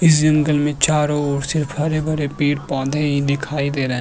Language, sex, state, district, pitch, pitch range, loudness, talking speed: Hindi, male, Maharashtra, Chandrapur, 145 Hz, 140-150 Hz, -19 LUFS, 225 wpm